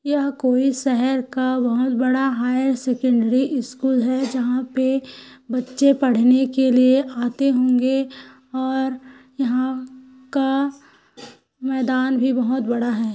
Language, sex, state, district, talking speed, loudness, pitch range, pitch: Hindi, female, Chhattisgarh, Korba, 120 wpm, -20 LUFS, 250-265 Hz, 260 Hz